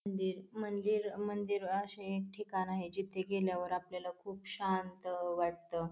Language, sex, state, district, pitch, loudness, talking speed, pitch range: Marathi, female, Maharashtra, Pune, 190 Hz, -38 LUFS, 140 wpm, 180-200 Hz